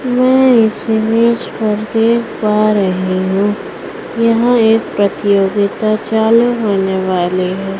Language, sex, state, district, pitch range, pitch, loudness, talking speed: Hindi, female, Chhattisgarh, Raipur, 195-230 Hz, 215 Hz, -13 LUFS, 55 wpm